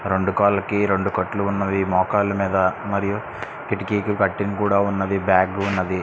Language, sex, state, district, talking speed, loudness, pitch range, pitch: Telugu, male, Andhra Pradesh, Srikakulam, 130 wpm, -21 LUFS, 95-100 Hz, 100 Hz